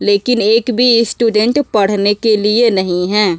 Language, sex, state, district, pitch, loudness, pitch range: Hindi, female, Uttar Pradesh, Budaun, 215 Hz, -13 LUFS, 205-235 Hz